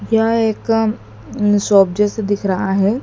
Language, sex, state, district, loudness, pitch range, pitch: Hindi, female, Madhya Pradesh, Dhar, -16 LUFS, 195-220 Hz, 205 Hz